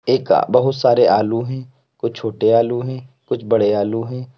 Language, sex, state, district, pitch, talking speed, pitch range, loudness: Hindi, male, Uttar Pradesh, Lalitpur, 125 Hz, 190 wpm, 115-130 Hz, -17 LUFS